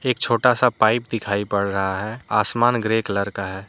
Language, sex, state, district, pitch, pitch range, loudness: Hindi, male, Jharkhand, Deoghar, 110 Hz, 100-120 Hz, -20 LUFS